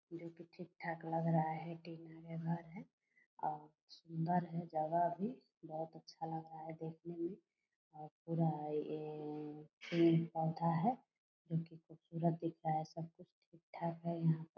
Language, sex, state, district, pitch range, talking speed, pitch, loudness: Hindi, female, Bihar, Purnia, 160-170 Hz, 160 wpm, 165 Hz, -41 LUFS